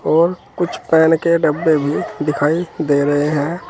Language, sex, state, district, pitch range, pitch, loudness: Hindi, male, Uttar Pradesh, Saharanpur, 150-170 Hz, 155 Hz, -16 LUFS